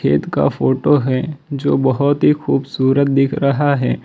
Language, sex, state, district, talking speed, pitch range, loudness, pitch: Hindi, male, Gujarat, Valsad, 160 wpm, 130-145 Hz, -16 LUFS, 135 Hz